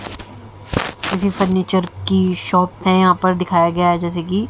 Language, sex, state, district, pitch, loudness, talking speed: Hindi, female, Haryana, Jhajjar, 175 Hz, -17 LUFS, 160 wpm